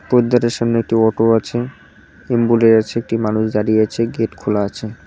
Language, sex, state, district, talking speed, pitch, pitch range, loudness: Bengali, male, West Bengal, Cooch Behar, 165 wpm, 115 Hz, 110-115 Hz, -16 LUFS